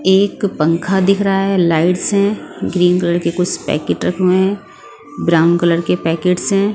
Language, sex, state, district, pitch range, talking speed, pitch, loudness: Hindi, female, Punjab, Pathankot, 170-195 Hz, 180 wpm, 180 Hz, -15 LUFS